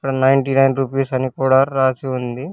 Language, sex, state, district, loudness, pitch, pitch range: Telugu, male, Telangana, Hyderabad, -17 LUFS, 135 Hz, 130-135 Hz